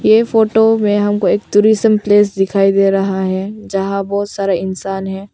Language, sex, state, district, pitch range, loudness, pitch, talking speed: Hindi, female, Arunachal Pradesh, Longding, 195-210 Hz, -14 LUFS, 200 Hz, 180 wpm